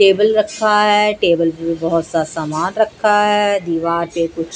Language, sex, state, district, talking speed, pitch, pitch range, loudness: Hindi, female, Odisha, Malkangiri, 170 wpm, 170 Hz, 165-210 Hz, -16 LUFS